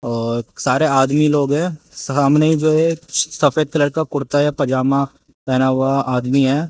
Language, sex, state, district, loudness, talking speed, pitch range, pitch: Hindi, male, Haryana, Jhajjar, -17 LUFS, 160 wpm, 135-155 Hz, 145 Hz